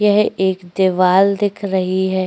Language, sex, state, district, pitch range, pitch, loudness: Hindi, female, Uttar Pradesh, Jyotiba Phule Nagar, 185-200 Hz, 190 Hz, -16 LUFS